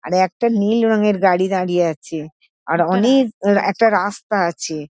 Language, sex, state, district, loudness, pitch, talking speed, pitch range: Bengali, female, West Bengal, North 24 Parganas, -17 LUFS, 195 Hz, 170 wpm, 175-215 Hz